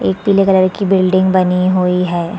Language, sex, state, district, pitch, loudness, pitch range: Hindi, female, Chhattisgarh, Sarguja, 185 Hz, -13 LUFS, 180-190 Hz